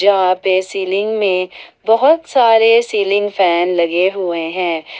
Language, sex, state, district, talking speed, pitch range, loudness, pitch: Hindi, female, Jharkhand, Ranchi, 130 wpm, 180-215 Hz, -14 LUFS, 190 Hz